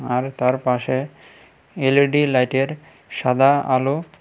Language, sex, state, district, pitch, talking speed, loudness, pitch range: Bengali, male, Tripura, West Tripura, 135 Hz, 85 wpm, -19 LUFS, 130-140 Hz